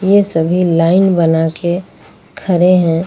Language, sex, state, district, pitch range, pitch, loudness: Hindi, female, Jharkhand, Ranchi, 165-190 Hz, 175 Hz, -13 LUFS